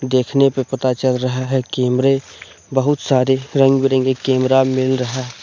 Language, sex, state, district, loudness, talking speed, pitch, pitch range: Hindi, male, Jharkhand, Deoghar, -17 LUFS, 155 wpm, 130 Hz, 130-135 Hz